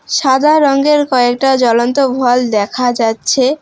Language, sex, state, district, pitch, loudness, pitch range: Bengali, female, West Bengal, Alipurduar, 255 Hz, -12 LUFS, 245-275 Hz